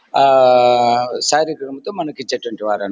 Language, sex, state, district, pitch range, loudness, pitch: Telugu, male, Andhra Pradesh, Chittoor, 120-135 Hz, -15 LUFS, 125 Hz